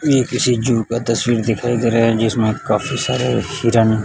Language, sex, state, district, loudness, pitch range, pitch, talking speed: Hindi, male, Chhattisgarh, Raipur, -17 LUFS, 115-125 Hz, 115 Hz, 190 wpm